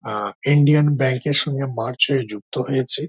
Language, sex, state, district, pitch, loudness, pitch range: Bengali, male, West Bengal, Dakshin Dinajpur, 135 Hz, -19 LUFS, 125-145 Hz